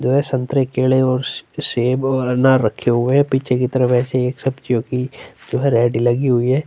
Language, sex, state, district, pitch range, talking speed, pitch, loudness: Hindi, male, Chhattisgarh, Sukma, 125-135 Hz, 190 wpm, 130 Hz, -17 LUFS